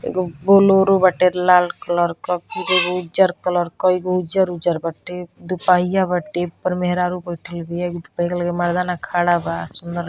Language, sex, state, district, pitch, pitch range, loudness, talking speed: Hindi, female, Uttar Pradesh, Deoria, 180 Hz, 175-180 Hz, -19 LUFS, 165 wpm